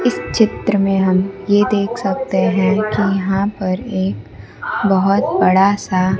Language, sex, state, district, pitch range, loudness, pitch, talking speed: Hindi, female, Bihar, Kaimur, 190-205 Hz, -16 LUFS, 195 Hz, 145 wpm